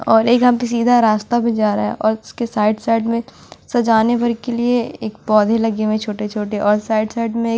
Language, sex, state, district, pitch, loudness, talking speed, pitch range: Hindi, female, Delhi, New Delhi, 225 Hz, -17 LUFS, 215 wpm, 215-235 Hz